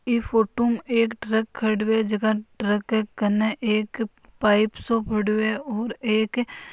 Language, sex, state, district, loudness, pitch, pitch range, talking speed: Marwari, female, Rajasthan, Nagaur, -24 LUFS, 220 Hz, 215-230 Hz, 135 wpm